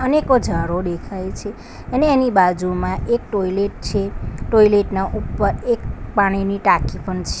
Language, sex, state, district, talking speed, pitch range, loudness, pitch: Gujarati, female, Gujarat, Valsad, 145 wpm, 185-235 Hz, -19 LUFS, 200 Hz